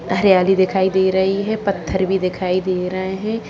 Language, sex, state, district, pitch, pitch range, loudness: Hindi, female, Bihar, Purnia, 190 Hz, 185-195 Hz, -18 LUFS